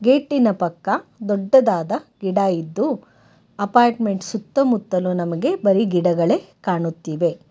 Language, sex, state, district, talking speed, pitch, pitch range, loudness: Kannada, female, Karnataka, Bangalore, 90 wpm, 195 Hz, 175-225 Hz, -20 LUFS